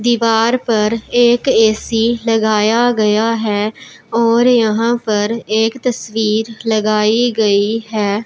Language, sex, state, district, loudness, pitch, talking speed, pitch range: Hindi, male, Punjab, Pathankot, -14 LUFS, 225 Hz, 110 wpm, 215-235 Hz